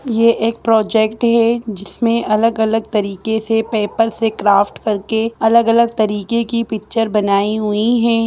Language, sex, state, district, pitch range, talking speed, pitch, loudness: Hindi, female, Bihar, Jahanabad, 215-230 Hz, 140 wpm, 225 Hz, -16 LUFS